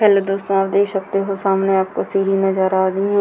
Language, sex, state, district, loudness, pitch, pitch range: Hindi, female, Bihar, Purnia, -18 LUFS, 195 Hz, 195-200 Hz